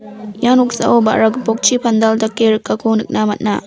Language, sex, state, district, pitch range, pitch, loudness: Garo, female, Meghalaya, West Garo Hills, 215-235 Hz, 220 Hz, -14 LUFS